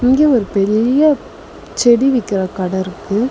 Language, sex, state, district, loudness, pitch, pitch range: Tamil, female, Tamil Nadu, Chennai, -15 LUFS, 230 Hz, 195-260 Hz